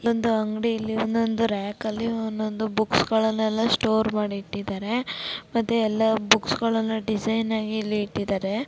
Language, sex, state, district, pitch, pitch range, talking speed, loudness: Kannada, female, Karnataka, Dakshina Kannada, 220 Hz, 215-225 Hz, 50 wpm, -24 LUFS